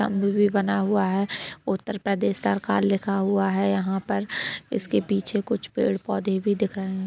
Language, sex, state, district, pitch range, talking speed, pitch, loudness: Hindi, female, Uttar Pradesh, Deoria, 190-200 Hz, 185 wpm, 195 Hz, -25 LUFS